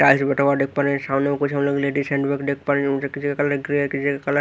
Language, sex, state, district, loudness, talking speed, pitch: Hindi, male, Bihar, Katihar, -21 LUFS, 120 wpm, 140 Hz